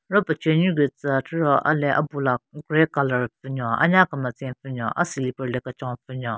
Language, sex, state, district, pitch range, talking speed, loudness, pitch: Rengma, female, Nagaland, Kohima, 125-155 Hz, 195 wpm, -23 LUFS, 135 Hz